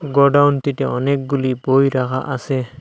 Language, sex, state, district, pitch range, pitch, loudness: Bengali, male, Assam, Hailakandi, 130-140 Hz, 135 Hz, -17 LUFS